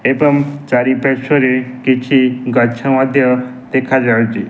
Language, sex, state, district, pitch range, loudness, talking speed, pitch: Odia, male, Odisha, Nuapada, 125-135 Hz, -14 LUFS, 105 wpm, 130 Hz